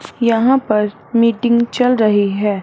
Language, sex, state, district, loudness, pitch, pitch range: Hindi, female, Punjab, Fazilka, -15 LUFS, 230 Hz, 210-235 Hz